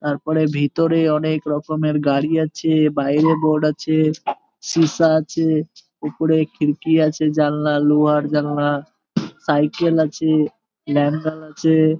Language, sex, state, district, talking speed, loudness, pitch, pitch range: Bengali, male, West Bengal, Malda, 100 wpm, -18 LUFS, 155 Hz, 150-160 Hz